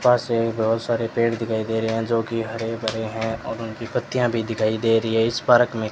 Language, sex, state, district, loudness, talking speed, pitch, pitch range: Hindi, male, Rajasthan, Bikaner, -22 LUFS, 255 wpm, 115 Hz, 110-115 Hz